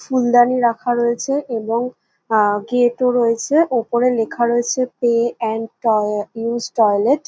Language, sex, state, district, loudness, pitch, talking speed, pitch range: Bengali, female, West Bengal, North 24 Parganas, -18 LUFS, 235 Hz, 140 wpm, 225-245 Hz